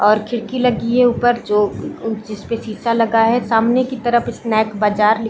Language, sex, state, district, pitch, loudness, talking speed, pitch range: Hindi, female, Chhattisgarh, Bilaspur, 230 Hz, -17 LUFS, 190 wpm, 215-240 Hz